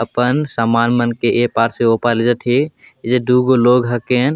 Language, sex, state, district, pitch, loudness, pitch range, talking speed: Sadri, male, Chhattisgarh, Jashpur, 120 Hz, -15 LUFS, 115-125 Hz, 205 wpm